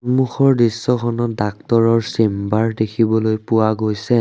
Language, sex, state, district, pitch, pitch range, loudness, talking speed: Assamese, male, Assam, Sonitpur, 115 Hz, 110-120 Hz, -17 LUFS, 100 wpm